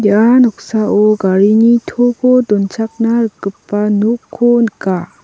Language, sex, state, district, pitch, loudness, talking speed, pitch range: Garo, female, Meghalaya, South Garo Hills, 220 Hz, -12 LUFS, 90 wpm, 205-235 Hz